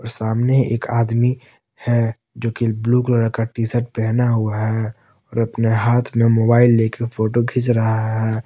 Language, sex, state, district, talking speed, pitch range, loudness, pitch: Hindi, male, Jharkhand, Palamu, 170 wpm, 110-120 Hz, -18 LUFS, 115 Hz